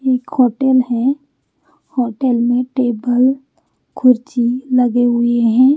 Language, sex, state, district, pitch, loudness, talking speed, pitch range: Hindi, female, Bihar, Patna, 250 Hz, -15 LUFS, 115 wpm, 240-260 Hz